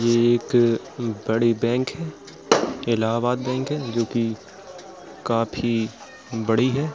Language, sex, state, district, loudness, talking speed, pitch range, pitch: Hindi, male, Uttar Pradesh, Jalaun, -23 LUFS, 105 wpm, 115-125 Hz, 115 Hz